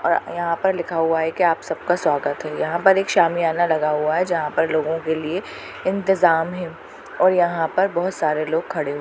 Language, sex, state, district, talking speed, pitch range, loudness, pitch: Hindi, female, Chhattisgarh, Bastar, 220 wpm, 160-180 Hz, -20 LUFS, 165 Hz